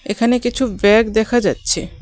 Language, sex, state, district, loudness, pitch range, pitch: Bengali, female, West Bengal, Cooch Behar, -16 LUFS, 215-240 Hz, 230 Hz